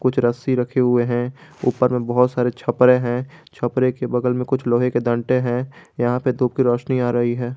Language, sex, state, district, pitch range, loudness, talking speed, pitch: Hindi, male, Jharkhand, Garhwa, 120-130 Hz, -20 LUFS, 220 wpm, 125 Hz